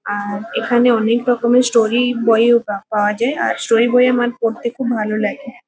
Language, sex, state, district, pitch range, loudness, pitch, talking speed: Bengali, female, West Bengal, Kolkata, 220-245 Hz, -16 LUFS, 235 Hz, 160 wpm